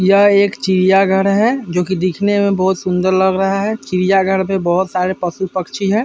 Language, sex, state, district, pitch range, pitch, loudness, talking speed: Hindi, male, Bihar, Vaishali, 185-200 Hz, 190 Hz, -15 LUFS, 230 wpm